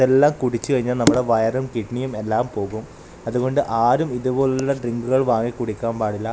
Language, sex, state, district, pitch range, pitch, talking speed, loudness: Malayalam, male, Kerala, Kasaragod, 115-130 Hz, 120 Hz, 140 wpm, -21 LUFS